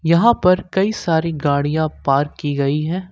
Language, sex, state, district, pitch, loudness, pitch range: Hindi, male, Jharkhand, Ranchi, 160 Hz, -18 LUFS, 145-180 Hz